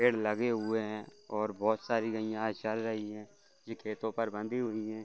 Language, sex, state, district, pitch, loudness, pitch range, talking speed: Hindi, male, Uttar Pradesh, Varanasi, 110 Hz, -35 LUFS, 110-115 Hz, 200 wpm